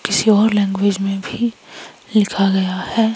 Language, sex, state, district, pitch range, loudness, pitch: Hindi, female, Himachal Pradesh, Shimla, 195-220 Hz, -17 LUFS, 205 Hz